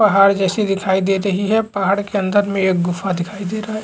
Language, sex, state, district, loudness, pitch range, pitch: Chhattisgarhi, male, Chhattisgarh, Jashpur, -17 LUFS, 190-205 Hz, 195 Hz